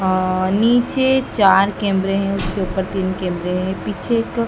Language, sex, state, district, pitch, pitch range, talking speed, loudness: Hindi, female, Madhya Pradesh, Dhar, 195 Hz, 185-230 Hz, 160 wpm, -18 LUFS